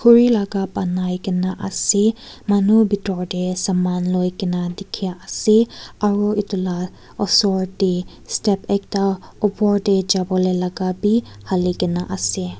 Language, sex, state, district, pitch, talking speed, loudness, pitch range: Nagamese, female, Nagaland, Kohima, 190 Hz, 130 wpm, -19 LUFS, 180-205 Hz